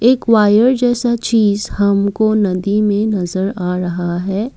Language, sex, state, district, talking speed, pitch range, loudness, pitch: Hindi, female, Assam, Kamrup Metropolitan, 145 wpm, 195-225 Hz, -15 LUFS, 205 Hz